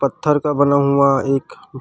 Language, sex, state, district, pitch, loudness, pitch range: Chhattisgarhi, male, Chhattisgarh, Rajnandgaon, 140 Hz, -16 LUFS, 135-145 Hz